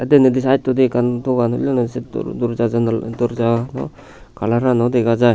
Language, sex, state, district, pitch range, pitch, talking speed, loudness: Chakma, male, Tripura, Unakoti, 115-130 Hz, 120 Hz, 155 wpm, -18 LUFS